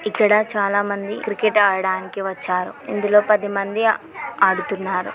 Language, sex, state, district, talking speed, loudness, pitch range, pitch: Telugu, female, Andhra Pradesh, Srikakulam, 115 wpm, -19 LUFS, 195-210 Hz, 205 Hz